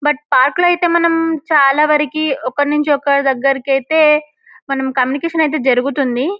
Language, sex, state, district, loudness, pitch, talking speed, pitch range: Telugu, female, Telangana, Karimnagar, -14 LUFS, 295 Hz, 120 wpm, 275-315 Hz